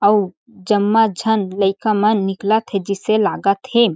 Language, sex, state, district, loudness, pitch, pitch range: Chhattisgarhi, female, Chhattisgarh, Jashpur, -17 LUFS, 210 Hz, 195-220 Hz